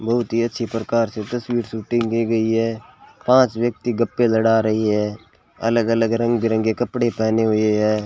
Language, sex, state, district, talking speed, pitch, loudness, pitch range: Hindi, male, Rajasthan, Bikaner, 180 wpm, 115 Hz, -20 LUFS, 110-120 Hz